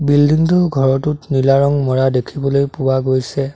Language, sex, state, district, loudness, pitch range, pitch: Assamese, male, Assam, Sonitpur, -15 LUFS, 130-145 Hz, 140 Hz